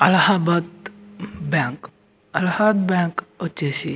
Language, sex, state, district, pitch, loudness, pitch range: Telugu, male, Andhra Pradesh, Anantapur, 175 Hz, -21 LUFS, 155-190 Hz